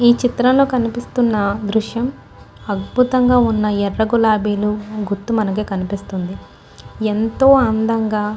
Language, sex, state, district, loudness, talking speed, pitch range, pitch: Telugu, female, Andhra Pradesh, Guntur, -17 LUFS, 100 wpm, 210-240 Hz, 220 Hz